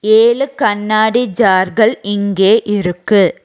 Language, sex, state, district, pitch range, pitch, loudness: Tamil, female, Tamil Nadu, Nilgiris, 200-230 Hz, 215 Hz, -13 LUFS